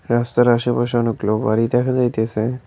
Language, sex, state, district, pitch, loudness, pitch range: Bengali, male, West Bengal, Cooch Behar, 120 Hz, -18 LUFS, 110-120 Hz